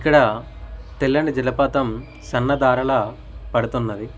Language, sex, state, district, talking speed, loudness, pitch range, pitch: Telugu, male, Telangana, Mahabubabad, 70 wpm, -20 LUFS, 115-140 Hz, 130 Hz